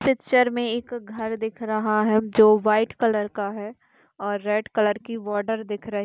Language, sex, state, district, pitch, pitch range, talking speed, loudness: Hindi, female, Bihar, Jamui, 215 Hz, 210-230 Hz, 190 wpm, -23 LUFS